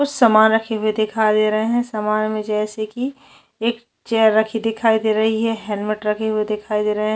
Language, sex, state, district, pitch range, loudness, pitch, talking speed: Hindi, female, Chhattisgarh, Jashpur, 215-225 Hz, -19 LUFS, 220 Hz, 220 wpm